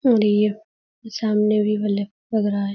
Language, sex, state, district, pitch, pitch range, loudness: Hindi, female, Uttar Pradesh, Budaun, 210 Hz, 205-220 Hz, -21 LUFS